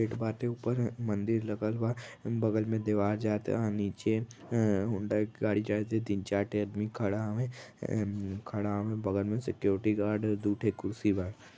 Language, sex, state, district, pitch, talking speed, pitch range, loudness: Bhojpuri, male, Uttar Pradesh, Varanasi, 105 Hz, 190 wpm, 105-110 Hz, -32 LUFS